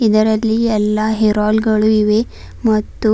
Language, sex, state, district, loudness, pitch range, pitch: Kannada, female, Karnataka, Bidar, -15 LUFS, 215-220 Hz, 215 Hz